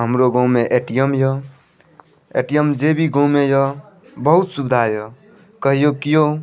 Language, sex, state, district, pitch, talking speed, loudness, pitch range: Maithili, male, Bihar, Madhepura, 140 Hz, 160 wpm, -17 LUFS, 125-150 Hz